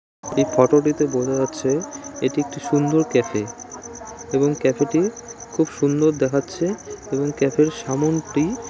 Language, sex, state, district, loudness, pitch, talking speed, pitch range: Bengali, male, West Bengal, Dakshin Dinajpur, -21 LUFS, 145 Hz, 125 wpm, 135-160 Hz